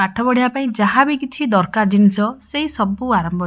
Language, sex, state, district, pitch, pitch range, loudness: Odia, female, Odisha, Khordha, 230 Hz, 205-260 Hz, -17 LUFS